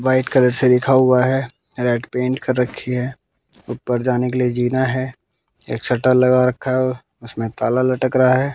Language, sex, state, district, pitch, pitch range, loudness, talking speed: Hindi, male, Bihar, West Champaran, 125 Hz, 125-130 Hz, -18 LUFS, 190 wpm